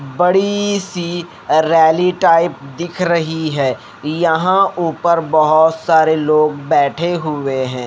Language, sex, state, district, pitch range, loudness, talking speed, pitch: Hindi, male, Haryana, Rohtak, 155-175 Hz, -15 LUFS, 115 wpm, 160 Hz